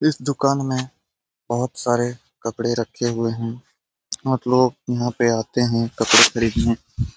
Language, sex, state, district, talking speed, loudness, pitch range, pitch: Hindi, male, Bihar, Jamui, 140 wpm, -20 LUFS, 115-130 Hz, 120 Hz